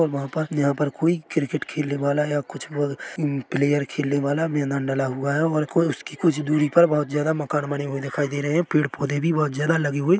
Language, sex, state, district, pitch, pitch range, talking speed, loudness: Hindi, male, Chhattisgarh, Korba, 150 Hz, 140-155 Hz, 245 wpm, -23 LUFS